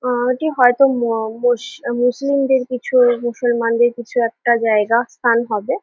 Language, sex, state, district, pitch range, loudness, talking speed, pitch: Bengali, female, West Bengal, Jhargram, 235-250 Hz, -17 LUFS, 115 wpm, 240 Hz